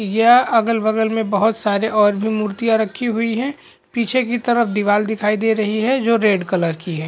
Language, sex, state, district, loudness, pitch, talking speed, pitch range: Hindi, male, Chhattisgarh, Bilaspur, -17 LUFS, 220 Hz, 205 wpm, 210-230 Hz